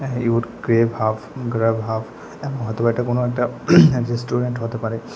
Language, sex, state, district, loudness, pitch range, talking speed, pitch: Bengali, male, Tripura, West Tripura, -20 LUFS, 115-125 Hz, 150 wpm, 120 Hz